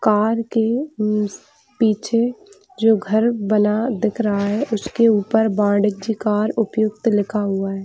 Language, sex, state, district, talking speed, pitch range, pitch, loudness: Hindi, female, Jharkhand, Jamtara, 130 wpm, 210-230 Hz, 220 Hz, -19 LUFS